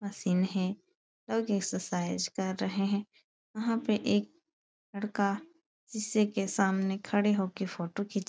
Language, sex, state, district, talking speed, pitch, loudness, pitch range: Hindi, female, Uttar Pradesh, Etah, 135 wpm, 200 Hz, -32 LUFS, 190-215 Hz